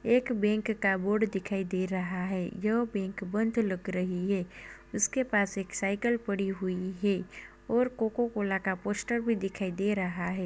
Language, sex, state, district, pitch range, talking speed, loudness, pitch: Hindi, male, Uttar Pradesh, Muzaffarnagar, 190-220 Hz, 170 wpm, -31 LUFS, 195 Hz